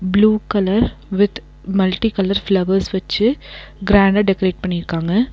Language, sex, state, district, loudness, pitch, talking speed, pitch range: Tamil, female, Tamil Nadu, Nilgiris, -17 LUFS, 195 Hz, 115 wpm, 190-210 Hz